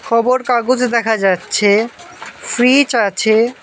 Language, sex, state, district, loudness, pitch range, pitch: Bengali, male, West Bengal, Alipurduar, -14 LUFS, 220-250 Hz, 235 Hz